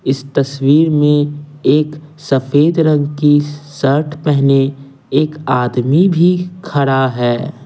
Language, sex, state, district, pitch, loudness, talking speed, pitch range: Hindi, male, Bihar, Patna, 145 Hz, -14 LUFS, 115 wpm, 135-150 Hz